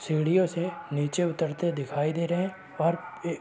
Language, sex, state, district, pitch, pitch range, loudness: Hindi, male, Chhattisgarh, Raigarh, 170 Hz, 155-175 Hz, -28 LUFS